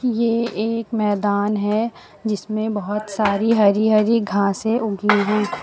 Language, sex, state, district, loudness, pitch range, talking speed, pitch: Hindi, female, Uttar Pradesh, Lucknow, -20 LUFS, 205-225 Hz, 130 wpm, 215 Hz